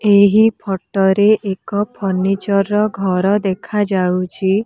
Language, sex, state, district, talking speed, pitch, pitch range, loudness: Odia, female, Odisha, Nuapada, 115 wpm, 195 Hz, 190-205 Hz, -16 LUFS